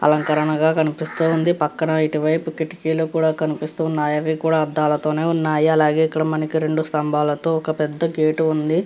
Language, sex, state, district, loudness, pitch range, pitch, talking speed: Telugu, female, Andhra Pradesh, Krishna, -20 LUFS, 155-160 Hz, 155 Hz, 150 wpm